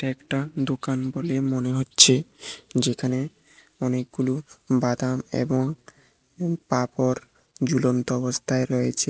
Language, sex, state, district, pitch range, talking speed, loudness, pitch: Bengali, male, Tripura, West Tripura, 125-135 Hz, 85 wpm, -24 LUFS, 130 Hz